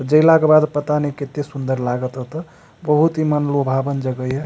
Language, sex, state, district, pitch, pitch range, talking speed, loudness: Maithili, male, Bihar, Supaul, 145 Hz, 135-155 Hz, 200 wpm, -18 LUFS